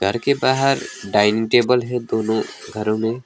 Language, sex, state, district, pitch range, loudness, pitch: Hindi, male, West Bengal, Alipurduar, 110-125 Hz, -19 LUFS, 115 Hz